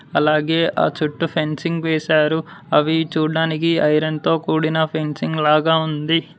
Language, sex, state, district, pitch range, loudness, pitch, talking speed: Telugu, male, Telangana, Mahabubabad, 155-165 Hz, -19 LUFS, 160 Hz, 120 wpm